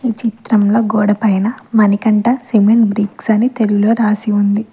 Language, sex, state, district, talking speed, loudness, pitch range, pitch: Telugu, female, Telangana, Mahabubabad, 125 wpm, -14 LUFS, 210-225 Hz, 215 Hz